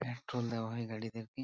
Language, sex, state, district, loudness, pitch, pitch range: Bengali, male, West Bengal, Purulia, -39 LUFS, 115 Hz, 115-120 Hz